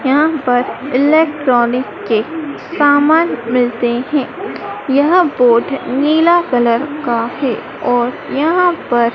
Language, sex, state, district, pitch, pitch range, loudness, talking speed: Hindi, female, Madhya Pradesh, Dhar, 275 Hz, 245-310 Hz, -14 LUFS, 105 wpm